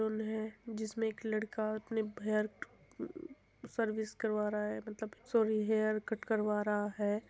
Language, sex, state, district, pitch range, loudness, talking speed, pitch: Hindi, female, Uttar Pradesh, Muzaffarnagar, 215-220 Hz, -36 LUFS, 155 wpm, 220 Hz